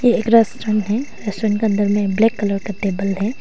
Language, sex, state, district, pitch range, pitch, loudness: Hindi, female, Arunachal Pradesh, Longding, 205-225 Hz, 210 Hz, -18 LUFS